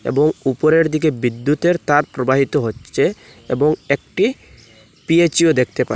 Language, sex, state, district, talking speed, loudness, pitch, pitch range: Bengali, male, Assam, Hailakandi, 120 wpm, -17 LUFS, 145 Hz, 130-155 Hz